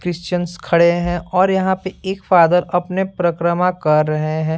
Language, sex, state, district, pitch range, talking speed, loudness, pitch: Hindi, male, Bihar, Saran, 170-185 Hz, 170 wpm, -17 LUFS, 175 Hz